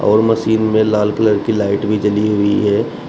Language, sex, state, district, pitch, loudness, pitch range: Hindi, male, Uttar Pradesh, Shamli, 105 Hz, -15 LUFS, 105-110 Hz